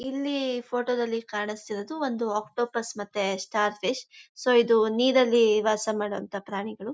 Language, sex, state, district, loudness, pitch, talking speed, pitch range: Kannada, female, Karnataka, Mysore, -26 LUFS, 225 Hz, 120 wpm, 210-250 Hz